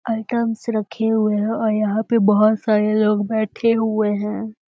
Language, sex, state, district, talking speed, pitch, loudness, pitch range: Hindi, male, Bihar, Samastipur, 165 wpm, 220 Hz, -19 LUFS, 215-225 Hz